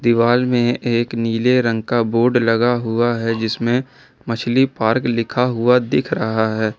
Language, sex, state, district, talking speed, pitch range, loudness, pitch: Hindi, male, Jharkhand, Ranchi, 160 wpm, 115-125 Hz, -17 LUFS, 120 Hz